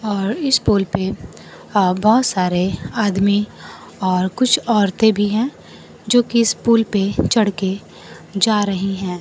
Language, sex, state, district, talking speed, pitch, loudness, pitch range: Hindi, female, Bihar, Kaimur, 130 wpm, 205 Hz, -17 LUFS, 195-225 Hz